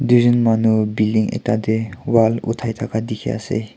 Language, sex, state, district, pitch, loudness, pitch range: Nagamese, male, Nagaland, Kohima, 110 Hz, -18 LUFS, 110-120 Hz